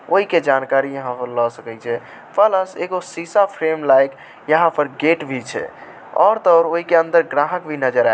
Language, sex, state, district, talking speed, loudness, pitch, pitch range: Maithili, male, Bihar, Samastipur, 200 wpm, -18 LUFS, 150 Hz, 130-170 Hz